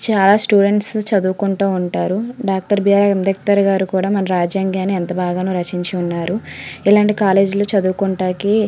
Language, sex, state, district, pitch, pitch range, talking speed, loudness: Telugu, female, Andhra Pradesh, Srikakulam, 195 Hz, 185-205 Hz, 130 wpm, -16 LUFS